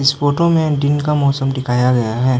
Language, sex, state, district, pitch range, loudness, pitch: Hindi, male, Arunachal Pradesh, Lower Dibang Valley, 125-145 Hz, -16 LUFS, 140 Hz